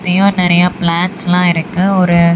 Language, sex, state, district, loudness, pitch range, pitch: Tamil, female, Tamil Nadu, Namakkal, -12 LUFS, 175-185 Hz, 180 Hz